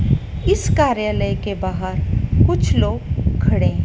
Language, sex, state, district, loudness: Hindi, female, Madhya Pradesh, Dhar, -19 LUFS